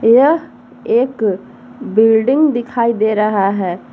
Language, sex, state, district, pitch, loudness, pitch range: Hindi, female, Jharkhand, Palamu, 225 Hz, -14 LUFS, 210-255 Hz